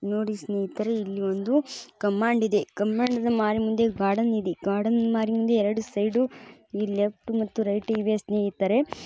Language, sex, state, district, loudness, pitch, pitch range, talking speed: Kannada, female, Karnataka, Bijapur, -25 LUFS, 215 Hz, 205-230 Hz, 140 wpm